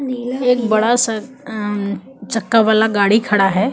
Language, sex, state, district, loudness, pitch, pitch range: Hindi, female, Chhattisgarh, Kabirdham, -16 LUFS, 220 Hz, 210-245 Hz